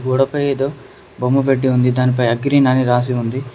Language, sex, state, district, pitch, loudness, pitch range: Telugu, male, Telangana, Mahabubabad, 130 Hz, -16 LUFS, 125-135 Hz